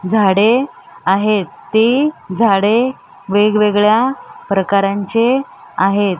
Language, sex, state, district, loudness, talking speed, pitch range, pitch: Marathi, female, Maharashtra, Mumbai Suburban, -15 LUFS, 70 wpm, 195-235 Hz, 210 Hz